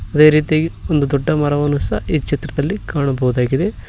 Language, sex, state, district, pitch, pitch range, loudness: Kannada, male, Karnataka, Koppal, 145 Hz, 140-155 Hz, -17 LUFS